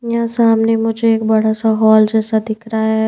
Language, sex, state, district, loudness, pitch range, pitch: Hindi, female, Bihar, Patna, -14 LUFS, 220-225 Hz, 220 Hz